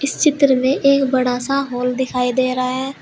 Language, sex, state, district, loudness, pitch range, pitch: Hindi, female, Uttar Pradesh, Saharanpur, -17 LUFS, 255-275 Hz, 260 Hz